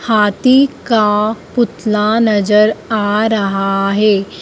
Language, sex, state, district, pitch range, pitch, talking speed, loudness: Hindi, female, Madhya Pradesh, Dhar, 200-220 Hz, 210 Hz, 95 wpm, -13 LUFS